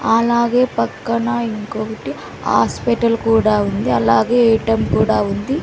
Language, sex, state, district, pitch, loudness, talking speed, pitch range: Telugu, female, Andhra Pradesh, Sri Satya Sai, 225 Hz, -17 LUFS, 105 wpm, 215-235 Hz